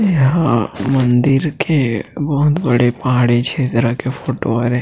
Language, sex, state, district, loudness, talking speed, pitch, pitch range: Chhattisgarhi, male, Chhattisgarh, Sarguja, -16 LUFS, 125 wpm, 130 Hz, 120-145 Hz